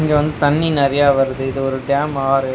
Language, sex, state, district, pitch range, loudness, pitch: Tamil, male, Tamil Nadu, Nilgiris, 135-145 Hz, -17 LUFS, 140 Hz